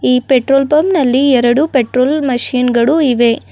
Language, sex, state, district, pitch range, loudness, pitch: Kannada, female, Karnataka, Bidar, 250-280 Hz, -12 LUFS, 260 Hz